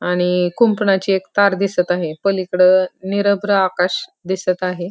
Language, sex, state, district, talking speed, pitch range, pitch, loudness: Marathi, female, Maharashtra, Pune, 145 wpm, 180-195 Hz, 185 Hz, -17 LUFS